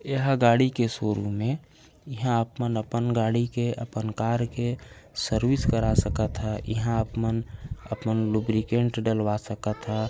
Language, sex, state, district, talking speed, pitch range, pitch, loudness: Chhattisgarhi, male, Chhattisgarh, Raigarh, 145 wpm, 110-120 Hz, 115 Hz, -26 LUFS